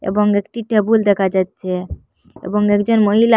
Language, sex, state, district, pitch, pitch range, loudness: Bengali, female, Assam, Hailakandi, 205 Hz, 195-220 Hz, -17 LUFS